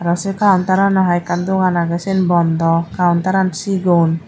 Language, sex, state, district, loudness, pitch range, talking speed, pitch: Chakma, female, Tripura, Dhalai, -15 LUFS, 170-190 Hz, 155 wpm, 180 Hz